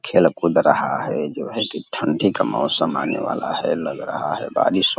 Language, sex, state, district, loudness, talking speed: Hindi, male, Uttar Pradesh, Deoria, -21 LUFS, 205 wpm